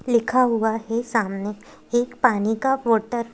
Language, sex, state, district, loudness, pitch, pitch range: Hindi, female, Madhya Pradesh, Bhopal, -22 LUFS, 230 Hz, 220-245 Hz